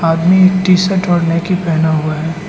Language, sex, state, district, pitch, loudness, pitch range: Hindi, male, Arunachal Pradesh, Lower Dibang Valley, 175 Hz, -13 LUFS, 165-185 Hz